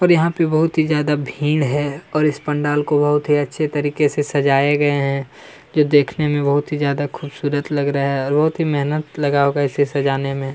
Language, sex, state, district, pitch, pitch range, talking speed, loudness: Hindi, male, Chhattisgarh, Kabirdham, 145 Hz, 140-150 Hz, 220 wpm, -18 LUFS